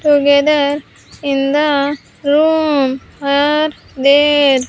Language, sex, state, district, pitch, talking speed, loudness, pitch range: English, female, Andhra Pradesh, Sri Satya Sai, 285 Hz, 75 wpm, -14 LUFS, 280-295 Hz